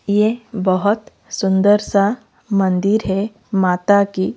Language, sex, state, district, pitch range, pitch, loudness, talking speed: Hindi, female, Odisha, Malkangiri, 190-210 Hz, 200 Hz, -17 LUFS, 110 wpm